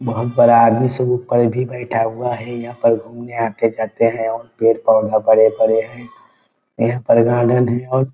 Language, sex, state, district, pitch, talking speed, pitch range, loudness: Hindi, male, Bihar, Muzaffarpur, 115 Hz, 160 wpm, 115-120 Hz, -16 LUFS